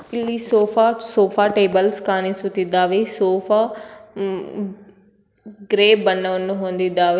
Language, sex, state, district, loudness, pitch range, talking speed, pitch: Kannada, female, Karnataka, Koppal, -19 LUFS, 190-215 Hz, 85 wpm, 200 Hz